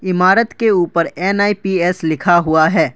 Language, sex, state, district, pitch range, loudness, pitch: Hindi, male, Assam, Kamrup Metropolitan, 170-195 Hz, -14 LUFS, 180 Hz